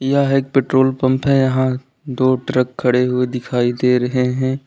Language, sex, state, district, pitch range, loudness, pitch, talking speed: Hindi, male, Uttar Pradesh, Lalitpur, 125-135 Hz, -17 LUFS, 130 Hz, 180 wpm